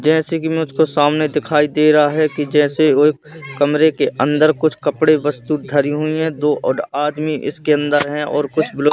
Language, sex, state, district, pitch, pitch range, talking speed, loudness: Hindi, male, Madhya Pradesh, Katni, 150 Hz, 145-155 Hz, 210 wpm, -16 LUFS